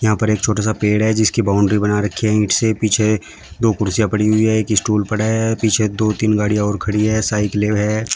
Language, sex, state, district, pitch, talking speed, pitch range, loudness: Hindi, male, Uttar Pradesh, Shamli, 110 Hz, 245 wpm, 105-110 Hz, -17 LUFS